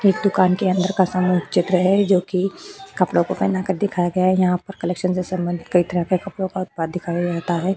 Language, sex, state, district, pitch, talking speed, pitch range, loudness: Hindi, female, Uttar Pradesh, Jyotiba Phule Nagar, 185 Hz, 230 wpm, 180-190 Hz, -20 LUFS